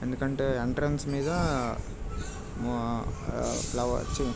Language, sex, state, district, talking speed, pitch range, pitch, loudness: Telugu, male, Andhra Pradesh, Krishna, 95 wpm, 105-135 Hz, 120 Hz, -31 LUFS